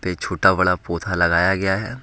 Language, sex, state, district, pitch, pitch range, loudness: Hindi, male, Jharkhand, Ranchi, 90 Hz, 90-95 Hz, -19 LUFS